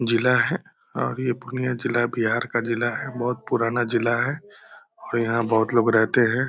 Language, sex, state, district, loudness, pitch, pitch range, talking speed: Hindi, male, Bihar, Purnia, -23 LUFS, 120 Hz, 115-125 Hz, 185 wpm